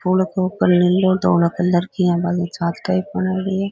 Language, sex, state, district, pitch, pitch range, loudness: Rajasthani, male, Rajasthan, Nagaur, 185 Hz, 175-185 Hz, -18 LUFS